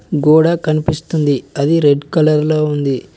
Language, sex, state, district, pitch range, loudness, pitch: Telugu, male, Telangana, Mahabubabad, 145-160 Hz, -14 LUFS, 155 Hz